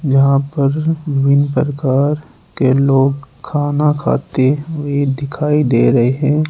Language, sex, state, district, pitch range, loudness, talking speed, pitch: Hindi, male, Rajasthan, Jaipur, 135-150 Hz, -15 LUFS, 120 wpm, 140 Hz